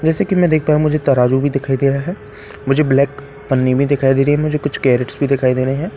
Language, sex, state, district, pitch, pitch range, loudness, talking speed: Hindi, male, Bihar, Katihar, 140 Hz, 135-150 Hz, -15 LUFS, 290 wpm